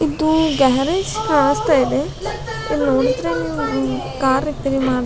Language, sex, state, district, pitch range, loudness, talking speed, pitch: Kannada, female, Karnataka, Raichur, 250-300 Hz, -18 LUFS, 130 wpm, 270 Hz